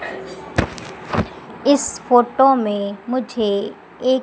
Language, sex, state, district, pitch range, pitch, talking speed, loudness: Hindi, female, Madhya Pradesh, Umaria, 210-260 Hz, 245 Hz, 70 wpm, -19 LUFS